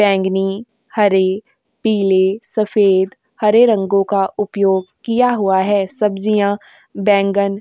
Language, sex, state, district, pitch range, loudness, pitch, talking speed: Hindi, female, Uttar Pradesh, Jyotiba Phule Nagar, 195-215 Hz, -16 LUFS, 200 Hz, 110 wpm